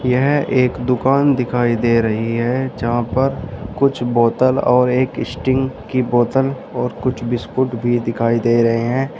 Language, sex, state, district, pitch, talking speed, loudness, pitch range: Hindi, male, Uttar Pradesh, Shamli, 125 Hz, 155 wpm, -17 LUFS, 120-130 Hz